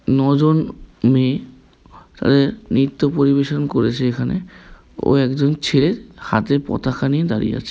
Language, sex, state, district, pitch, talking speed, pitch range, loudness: Bengali, male, West Bengal, Kolkata, 140 Hz, 115 wpm, 130-145 Hz, -18 LUFS